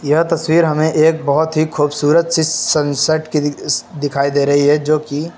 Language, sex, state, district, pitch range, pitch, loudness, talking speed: Hindi, male, Uttar Pradesh, Lucknow, 145-160 Hz, 155 Hz, -15 LUFS, 210 wpm